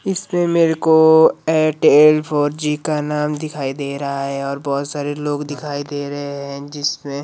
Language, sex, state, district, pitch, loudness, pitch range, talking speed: Hindi, male, Himachal Pradesh, Shimla, 145 Hz, -17 LUFS, 140-155 Hz, 175 wpm